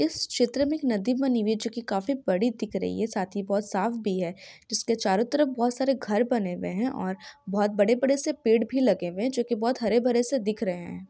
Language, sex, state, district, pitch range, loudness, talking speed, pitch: Hindi, female, Bihar, Jahanabad, 200-250 Hz, -26 LUFS, 270 wpm, 230 Hz